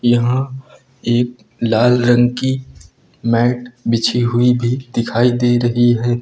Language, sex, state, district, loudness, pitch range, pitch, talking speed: Hindi, male, Uttar Pradesh, Lucknow, -16 LUFS, 120-125 Hz, 120 Hz, 125 wpm